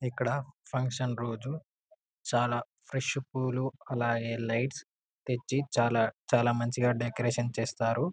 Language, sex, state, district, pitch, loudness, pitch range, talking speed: Telugu, male, Telangana, Karimnagar, 125 Hz, -31 LUFS, 120-130 Hz, 105 wpm